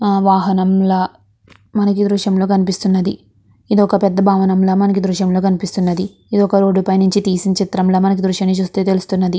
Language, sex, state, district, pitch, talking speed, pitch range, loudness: Telugu, female, Andhra Pradesh, Guntur, 190 Hz, 130 wpm, 185-195 Hz, -15 LUFS